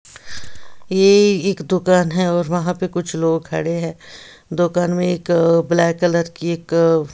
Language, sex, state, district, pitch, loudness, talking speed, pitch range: Hindi, female, Bihar, West Champaran, 175 Hz, -17 LUFS, 160 wpm, 165-180 Hz